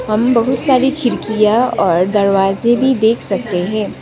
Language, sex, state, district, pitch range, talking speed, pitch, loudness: Hindi, female, Sikkim, Gangtok, 205-250 Hz, 150 wpm, 225 Hz, -14 LUFS